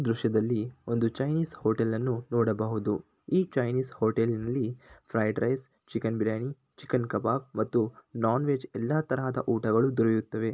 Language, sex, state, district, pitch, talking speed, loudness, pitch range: Kannada, male, Karnataka, Shimoga, 115 Hz, 150 wpm, -29 LUFS, 110-130 Hz